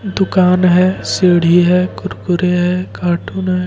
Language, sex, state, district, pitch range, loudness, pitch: Hindi, male, Jharkhand, Ranchi, 175-185 Hz, -13 LUFS, 180 Hz